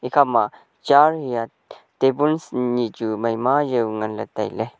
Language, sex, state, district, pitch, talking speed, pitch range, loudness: Wancho, male, Arunachal Pradesh, Longding, 120 Hz, 125 wpm, 115-140 Hz, -21 LUFS